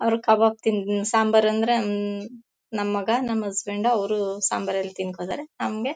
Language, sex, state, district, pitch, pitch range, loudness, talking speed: Kannada, female, Karnataka, Mysore, 215 Hz, 205-225 Hz, -24 LUFS, 150 wpm